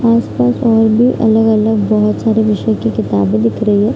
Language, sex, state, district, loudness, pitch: Hindi, female, Bihar, Araria, -13 LUFS, 215 Hz